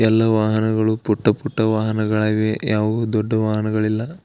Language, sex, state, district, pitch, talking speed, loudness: Kannada, male, Karnataka, Belgaum, 110 Hz, 125 wpm, -19 LUFS